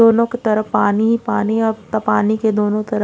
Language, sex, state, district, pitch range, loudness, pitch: Hindi, female, Odisha, Khordha, 215-225 Hz, -17 LUFS, 215 Hz